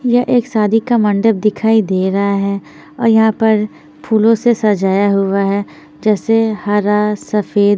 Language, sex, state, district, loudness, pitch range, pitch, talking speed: Hindi, female, Bihar, Patna, -14 LUFS, 200-225 Hz, 210 Hz, 155 wpm